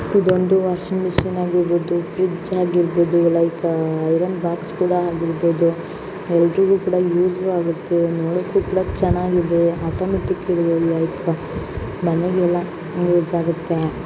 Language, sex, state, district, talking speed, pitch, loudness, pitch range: Kannada, female, Karnataka, Mysore, 105 wpm, 175 Hz, -19 LUFS, 170-180 Hz